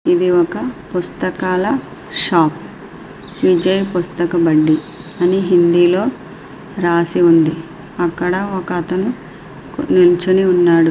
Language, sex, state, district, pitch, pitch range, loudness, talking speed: Telugu, female, Andhra Pradesh, Srikakulam, 180 Hz, 170-190 Hz, -15 LUFS, 95 wpm